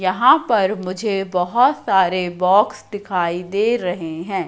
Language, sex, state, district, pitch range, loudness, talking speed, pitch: Hindi, female, Madhya Pradesh, Katni, 180-215 Hz, -18 LUFS, 135 wpm, 190 Hz